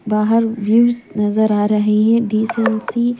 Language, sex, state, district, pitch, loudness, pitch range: Hindi, female, Punjab, Pathankot, 220 Hz, -16 LUFS, 210-230 Hz